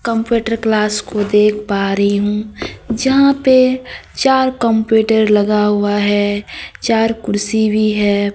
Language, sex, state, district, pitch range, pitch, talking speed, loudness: Hindi, female, Bihar, Katihar, 205-230 Hz, 215 Hz, 130 wpm, -14 LUFS